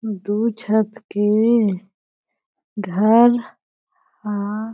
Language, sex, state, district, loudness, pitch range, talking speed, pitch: Chhattisgarhi, female, Chhattisgarh, Jashpur, -19 LUFS, 205-225 Hz, 65 wpm, 215 Hz